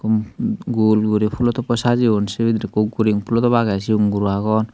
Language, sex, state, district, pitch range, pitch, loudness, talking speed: Chakma, male, Tripura, Dhalai, 105-120 Hz, 110 Hz, -18 LUFS, 165 wpm